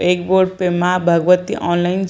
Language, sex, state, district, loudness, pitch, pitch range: Hindi, female, Bihar, Samastipur, -16 LUFS, 180 Hz, 175-185 Hz